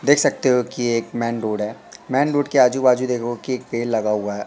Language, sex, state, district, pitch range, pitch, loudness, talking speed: Hindi, male, Madhya Pradesh, Katni, 115-130 Hz, 120 Hz, -20 LUFS, 270 wpm